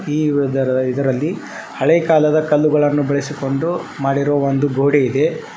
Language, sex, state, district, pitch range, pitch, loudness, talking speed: Kannada, male, Karnataka, Koppal, 135-150 Hz, 145 Hz, -17 LUFS, 120 wpm